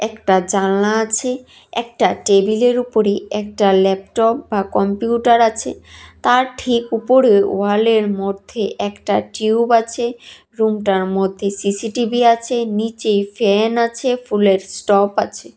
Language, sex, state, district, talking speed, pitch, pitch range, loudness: Bengali, female, Tripura, West Tripura, 110 wpm, 220 Hz, 200-235 Hz, -17 LUFS